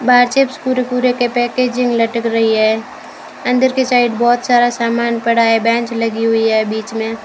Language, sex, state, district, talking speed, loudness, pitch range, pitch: Hindi, female, Rajasthan, Bikaner, 180 wpm, -14 LUFS, 225-250 Hz, 235 Hz